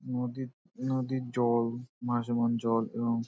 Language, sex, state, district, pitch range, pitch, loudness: Bengali, male, West Bengal, Dakshin Dinajpur, 115-125 Hz, 120 Hz, -31 LUFS